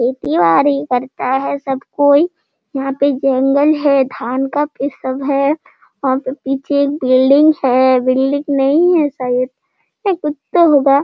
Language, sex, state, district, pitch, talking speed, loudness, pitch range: Hindi, female, Bihar, Sitamarhi, 275 Hz, 150 wpm, -15 LUFS, 260-290 Hz